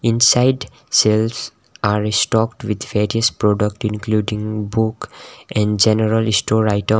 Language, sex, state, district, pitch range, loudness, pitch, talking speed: English, male, Sikkim, Gangtok, 105-115 Hz, -17 LUFS, 110 Hz, 110 wpm